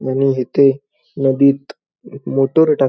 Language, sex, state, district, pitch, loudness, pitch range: Marathi, male, Maharashtra, Pune, 135 Hz, -15 LUFS, 135-140 Hz